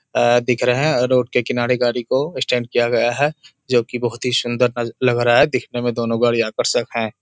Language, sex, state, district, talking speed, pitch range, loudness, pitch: Hindi, male, Bihar, Kishanganj, 235 wpm, 120-125 Hz, -18 LUFS, 120 Hz